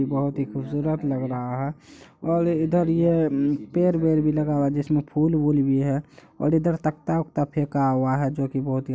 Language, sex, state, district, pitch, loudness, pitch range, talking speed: Hindi, male, Bihar, Araria, 145 Hz, -23 LUFS, 140-160 Hz, 210 wpm